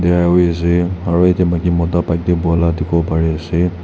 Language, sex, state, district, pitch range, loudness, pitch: Nagamese, male, Nagaland, Dimapur, 85-90 Hz, -15 LUFS, 85 Hz